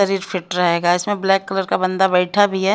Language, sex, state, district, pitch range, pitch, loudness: Hindi, female, Himachal Pradesh, Shimla, 180-195 Hz, 190 Hz, -18 LUFS